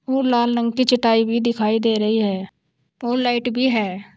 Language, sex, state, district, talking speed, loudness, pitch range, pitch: Hindi, female, Uttar Pradesh, Saharanpur, 185 wpm, -19 LUFS, 215-245 Hz, 235 Hz